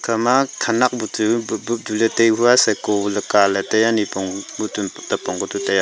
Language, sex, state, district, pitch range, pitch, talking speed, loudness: Wancho, male, Arunachal Pradesh, Longding, 105-115 Hz, 110 Hz, 185 wpm, -19 LUFS